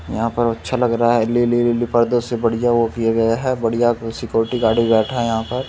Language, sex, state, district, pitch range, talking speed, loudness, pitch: Hindi, male, Uttar Pradesh, Muzaffarnagar, 115-120 Hz, 240 wpm, -18 LUFS, 115 Hz